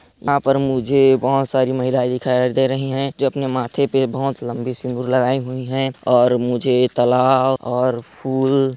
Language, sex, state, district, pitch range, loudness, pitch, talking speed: Chhattisgarhi, male, Chhattisgarh, Korba, 125-135 Hz, -18 LUFS, 130 Hz, 165 wpm